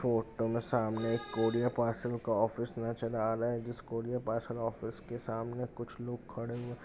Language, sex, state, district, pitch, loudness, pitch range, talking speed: Hindi, male, Bihar, Jamui, 115 Hz, -35 LUFS, 115-120 Hz, 200 wpm